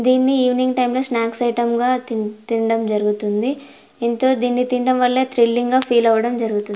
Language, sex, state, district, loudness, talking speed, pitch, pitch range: Telugu, female, Andhra Pradesh, Anantapur, -18 LUFS, 160 wpm, 240 Hz, 225-255 Hz